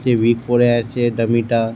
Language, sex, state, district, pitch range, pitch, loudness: Bengali, male, West Bengal, Jhargram, 115-120 Hz, 120 Hz, -17 LUFS